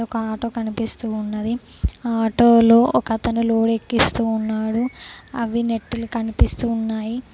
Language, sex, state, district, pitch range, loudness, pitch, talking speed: Telugu, female, Telangana, Mahabubabad, 225-235 Hz, -20 LUFS, 230 Hz, 115 wpm